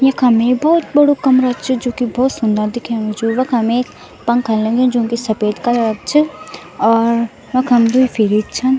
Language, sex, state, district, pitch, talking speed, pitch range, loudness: Garhwali, female, Uttarakhand, Tehri Garhwal, 240 Hz, 185 wpm, 225-255 Hz, -15 LUFS